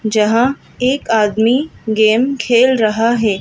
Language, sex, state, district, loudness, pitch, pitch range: Hindi, female, Madhya Pradesh, Bhopal, -14 LUFS, 230 Hz, 215-255 Hz